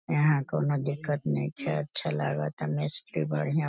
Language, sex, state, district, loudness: Bhojpuri, female, Uttar Pradesh, Deoria, -29 LUFS